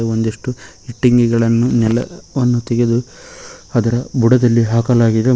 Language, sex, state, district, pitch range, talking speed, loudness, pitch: Kannada, male, Karnataka, Koppal, 115-125 Hz, 90 wpm, -15 LUFS, 120 Hz